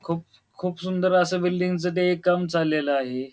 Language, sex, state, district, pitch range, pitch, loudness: Marathi, male, Maharashtra, Pune, 155-180 Hz, 180 Hz, -24 LUFS